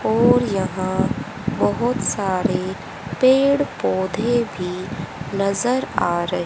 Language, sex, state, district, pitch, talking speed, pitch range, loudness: Hindi, female, Haryana, Charkhi Dadri, 195 Hz, 95 wpm, 185-240 Hz, -20 LUFS